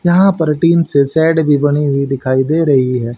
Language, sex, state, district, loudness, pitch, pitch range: Hindi, female, Haryana, Charkhi Dadri, -13 LUFS, 145 Hz, 135-165 Hz